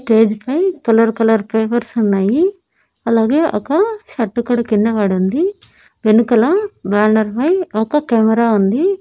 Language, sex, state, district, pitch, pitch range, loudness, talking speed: Telugu, female, Andhra Pradesh, Annamaya, 230 Hz, 220-310 Hz, -15 LUFS, 125 wpm